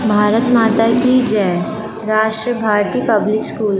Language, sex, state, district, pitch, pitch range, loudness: Hindi, female, Chandigarh, Chandigarh, 220 Hz, 210-225 Hz, -15 LUFS